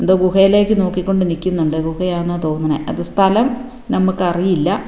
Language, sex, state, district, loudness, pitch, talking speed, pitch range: Malayalam, female, Kerala, Wayanad, -16 LUFS, 185 Hz, 125 wpm, 170-195 Hz